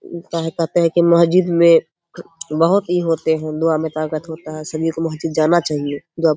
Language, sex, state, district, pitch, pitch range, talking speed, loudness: Hindi, female, Bihar, Kishanganj, 165 Hz, 155-170 Hz, 215 wpm, -17 LUFS